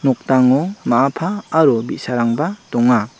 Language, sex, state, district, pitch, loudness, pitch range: Garo, male, Meghalaya, South Garo Hills, 135 Hz, -17 LUFS, 120-170 Hz